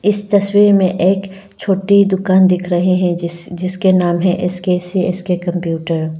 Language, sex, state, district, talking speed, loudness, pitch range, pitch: Hindi, female, Arunachal Pradesh, Lower Dibang Valley, 195 wpm, -14 LUFS, 180-195 Hz, 185 Hz